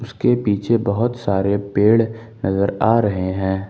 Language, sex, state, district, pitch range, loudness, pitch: Hindi, male, Jharkhand, Ranchi, 95-115 Hz, -19 LUFS, 105 Hz